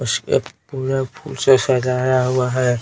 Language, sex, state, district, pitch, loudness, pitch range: Hindi, male, Bihar, Patna, 130 Hz, -18 LUFS, 125-135 Hz